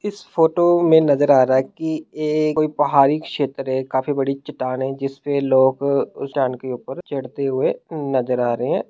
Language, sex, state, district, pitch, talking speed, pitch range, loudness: Hindi, male, Bihar, Muzaffarpur, 140 Hz, 190 wpm, 130-155 Hz, -19 LUFS